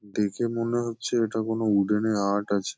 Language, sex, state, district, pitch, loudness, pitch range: Bengali, male, West Bengal, Kolkata, 110 Hz, -26 LUFS, 100-115 Hz